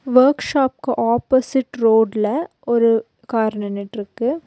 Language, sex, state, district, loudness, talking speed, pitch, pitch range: Tamil, female, Tamil Nadu, Nilgiris, -19 LUFS, 80 wpm, 235 Hz, 220-260 Hz